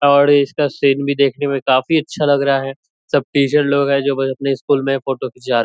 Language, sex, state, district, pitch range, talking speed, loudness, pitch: Hindi, male, Bihar, Purnia, 135-140 Hz, 265 wpm, -16 LUFS, 140 Hz